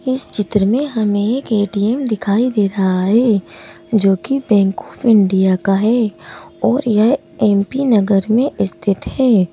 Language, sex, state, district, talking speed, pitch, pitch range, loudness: Hindi, female, Madhya Pradesh, Bhopal, 145 wpm, 210 Hz, 195-240 Hz, -15 LUFS